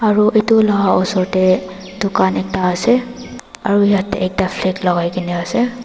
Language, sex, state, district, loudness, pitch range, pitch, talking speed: Nagamese, female, Nagaland, Dimapur, -16 LUFS, 185-220 Hz, 190 Hz, 145 wpm